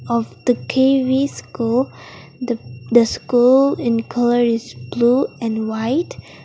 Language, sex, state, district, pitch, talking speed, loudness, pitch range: English, female, Mizoram, Aizawl, 240 Hz, 110 wpm, -18 LUFS, 230-260 Hz